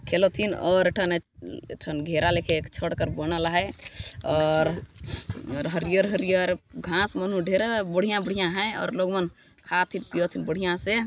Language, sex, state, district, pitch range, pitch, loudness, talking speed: Sadri, female, Chhattisgarh, Jashpur, 160-190 Hz, 175 Hz, -25 LUFS, 150 wpm